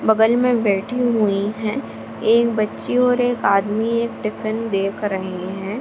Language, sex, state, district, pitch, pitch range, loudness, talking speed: Hindi, female, Bihar, Supaul, 220 Hz, 200-235 Hz, -19 LUFS, 155 wpm